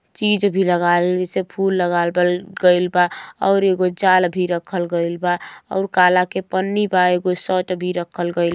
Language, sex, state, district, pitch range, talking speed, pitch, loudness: Bhojpuri, female, Uttar Pradesh, Gorakhpur, 175-190 Hz, 190 wpm, 180 Hz, -18 LUFS